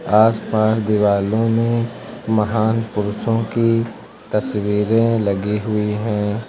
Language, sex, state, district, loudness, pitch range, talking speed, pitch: Hindi, male, Uttar Pradesh, Lucknow, -18 LUFS, 105-115 Hz, 90 wpm, 110 Hz